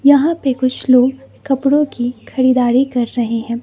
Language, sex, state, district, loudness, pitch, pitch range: Hindi, female, Bihar, West Champaran, -15 LUFS, 255 Hz, 245-275 Hz